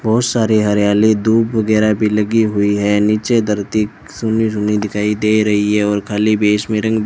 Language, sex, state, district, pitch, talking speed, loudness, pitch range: Hindi, male, Rajasthan, Bikaner, 105 Hz, 195 wpm, -15 LUFS, 105-110 Hz